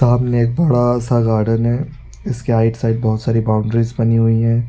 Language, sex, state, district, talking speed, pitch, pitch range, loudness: Hindi, male, Chhattisgarh, Raigarh, 190 wpm, 115 Hz, 115-120 Hz, -16 LUFS